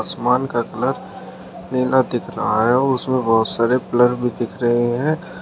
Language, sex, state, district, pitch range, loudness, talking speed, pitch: Hindi, male, Uttar Pradesh, Shamli, 120-130 Hz, -19 LUFS, 175 wpm, 125 Hz